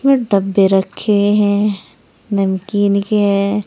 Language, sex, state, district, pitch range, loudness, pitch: Hindi, female, Uttar Pradesh, Saharanpur, 195-210 Hz, -15 LUFS, 200 Hz